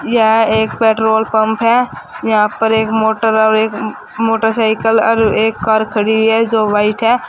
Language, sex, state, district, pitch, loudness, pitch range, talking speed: Hindi, female, Uttar Pradesh, Saharanpur, 220 Hz, -13 LUFS, 220-225 Hz, 175 wpm